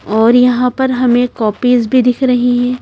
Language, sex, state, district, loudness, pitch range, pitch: Hindi, female, Madhya Pradesh, Bhopal, -12 LUFS, 245-250 Hz, 245 Hz